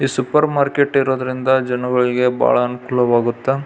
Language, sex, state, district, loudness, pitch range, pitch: Kannada, male, Karnataka, Belgaum, -17 LUFS, 125-135 Hz, 130 Hz